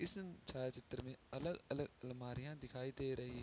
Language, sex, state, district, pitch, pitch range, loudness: Hindi, male, Bihar, Sitamarhi, 130 Hz, 125-145 Hz, -47 LUFS